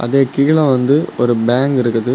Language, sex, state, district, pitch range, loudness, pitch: Tamil, male, Tamil Nadu, Kanyakumari, 120-140 Hz, -14 LUFS, 130 Hz